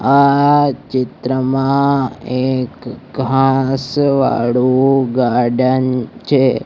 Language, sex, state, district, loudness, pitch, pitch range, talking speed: Gujarati, male, Gujarat, Gandhinagar, -15 LUFS, 130 Hz, 130-135 Hz, 65 wpm